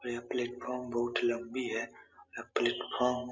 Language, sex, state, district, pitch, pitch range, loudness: Hindi, male, Uttar Pradesh, Etah, 125 Hz, 120-125 Hz, -34 LUFS